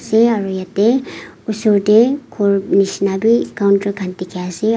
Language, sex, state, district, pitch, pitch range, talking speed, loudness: Nagamese, female, Nagaland, Kohima, 200 Hz, 195-225 Hz, 150 wpm, -16 LUFS